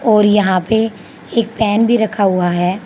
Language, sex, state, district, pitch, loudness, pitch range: Hindi, female, Haryana, Charkhi Dadri, 210 Hz, -14 LUFS, 190-225 Hz